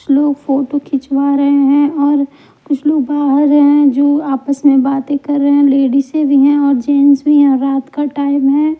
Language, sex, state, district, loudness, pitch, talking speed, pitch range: Hindi, female, Bihar, Patna, -12 LUFS, 285 Hz, 205 wpm, 275-290 Hz